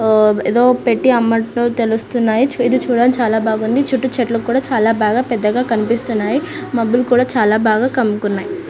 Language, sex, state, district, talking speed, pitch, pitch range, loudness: Telugu, female, Andhra Pradesh, Anantapur, 140 wpm, 235 Hz, 220-250 Hz, -15 LUFS